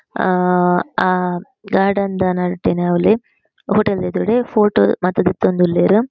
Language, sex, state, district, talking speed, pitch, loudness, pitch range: Tulu, female, Karnataka, Dakshina Kannada, 120 wpm, 185 Hz, -16 LUFS, 180-210 Hz